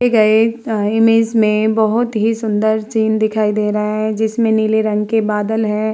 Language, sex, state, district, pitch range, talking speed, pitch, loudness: Hindi, female, Uttar Pradesh, Muzaffarnagar, 215-225 Hz, 160 wpm, 220 Hz, -15 LUFS